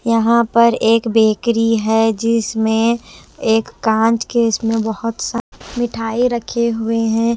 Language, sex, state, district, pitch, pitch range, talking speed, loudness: Hindi, female, Bihar, West Champaran, 230 Hz, 225-235 Hz, 130 wpm, -16 LUFS